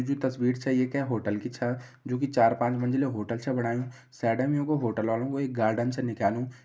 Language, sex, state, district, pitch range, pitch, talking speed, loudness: Garhwali, male, Uttarakhand, Uttarkashi, 115-130 Hz, 125 Hz, 225 wpm, -28 LUFS